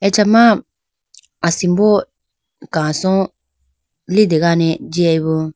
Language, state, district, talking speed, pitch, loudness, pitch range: Idu Mishmi, Arunachal Pradesh, Lower Dibang Valley, 55 wpm, 170 Hz, -15 LUFS, 160-200 Hz